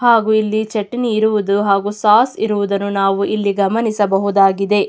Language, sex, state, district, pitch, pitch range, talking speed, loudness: Kannada, female, Karnataka, Mysore, 205 Hz, 200-220 Hz, 120 wpm, -15 LUFS